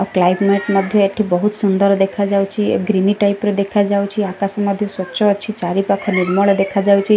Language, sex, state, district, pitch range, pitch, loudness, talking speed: Odia, female, Odisha, Malkangiri, 195-205 Hz, 200 Hz, -16 LUFS, 150 wpm